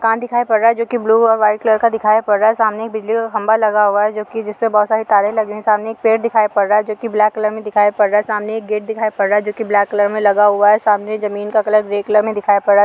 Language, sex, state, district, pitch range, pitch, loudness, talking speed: Hindi, female, Bihar, Muzaffarpur, 210-220 Hz, 215 Hz, -15 LUFS, 350 wpm